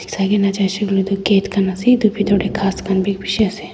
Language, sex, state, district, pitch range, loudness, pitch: Nagamese, female, Nagaland, Dimapur, 195-205 Hz, -17 LUFS, 195 Hz